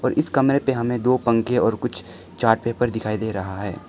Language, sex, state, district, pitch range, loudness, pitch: Hindi, male, Arunachal Pradesh, Lower Dibang Valley, 105-125 Hz, -21 LUFS, 115 Hz